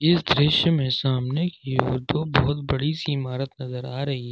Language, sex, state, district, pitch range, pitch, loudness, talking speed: Hindi, male, Jharkhand, Ranchi, 130-150 Hz, 140 Hz, -23 LUFS, 210 wpm